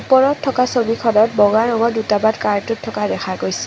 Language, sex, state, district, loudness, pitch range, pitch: Assamese, female, Assam, Kamrup Metropolitan, -17 LUFS, 210-235 Hz, 225 Hz